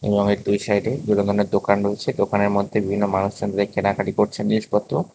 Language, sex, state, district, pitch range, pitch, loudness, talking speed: Bengali, male, Tripura, West Tripura, 100-105 Hz, 100 Hz, -21 LUFS, 165 wpm